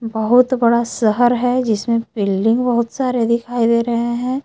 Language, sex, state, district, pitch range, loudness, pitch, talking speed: Hindi, female, Jharkhand, Palamu, 230-245 Hz, -16 LUFS, 235 Hz, 160 wpm